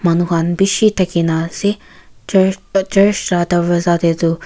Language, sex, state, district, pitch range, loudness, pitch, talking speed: Nagamese, female, Nagaland, Kohima, 170-195 Hz, -15 LUFS, 175 Hz, 160 wpm